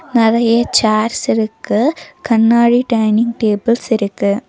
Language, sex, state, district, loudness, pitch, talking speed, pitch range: Tamil, female, Tamil Nadu, Nilgiris, -14 LUFS, 230 Hz, 95 wpm, 215-235 Hz